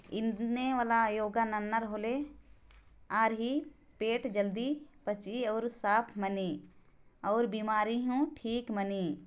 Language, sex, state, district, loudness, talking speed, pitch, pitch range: Sadri, female, Chhattisgarh, Jashpur, -33 LUFS, 110 wpm, 225 Hz, 210-245 Hz